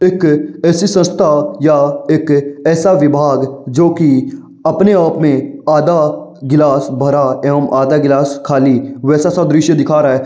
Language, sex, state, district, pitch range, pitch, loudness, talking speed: Hindi, male, Uttar Pradesh, Varanasi, 140-160 Hz, 150 Hz, -12 LUFS, 145 wpm